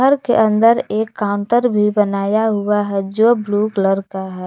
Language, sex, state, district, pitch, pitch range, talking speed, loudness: Hindi, female, Jharkhand, Garhwa, 210 Hz, 200-225 Hz, 190 wpm, -16 LUFS